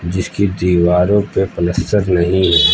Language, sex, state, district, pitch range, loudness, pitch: Hindi, male, Uttar Pradesh, Lucknow, 85-95 Hz, -15 LUFS, 90 Hz